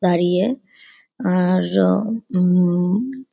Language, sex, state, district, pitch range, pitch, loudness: Bengali, female, West Bengal, Paschim Medinipur, 180-225 Hz, 180 Hz, -19 LUFS